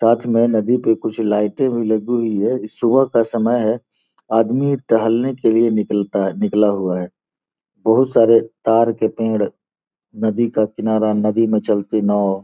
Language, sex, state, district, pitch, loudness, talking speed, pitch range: Hindi, male, Bihar, Gopalganj, 110 Hz, -17 LUFS, 160 wpm, 105-115 Hz